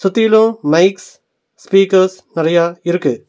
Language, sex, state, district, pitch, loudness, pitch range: Tamil, male, Tamil Nadu, Nilgiris, 190 Hz, -13 LUFS, 170-220 Hz